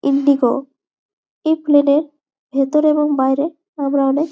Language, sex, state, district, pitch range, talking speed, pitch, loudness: Bengali, female, West Bengal, Malda, 275-300 Hz, 110 wpm, 285 Hz, -17 LUFS